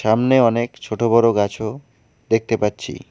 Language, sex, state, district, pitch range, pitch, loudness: Bengali, male, West Bengal, Alipurduar, 110-120 Hz, 115 Hz, -18 LUFS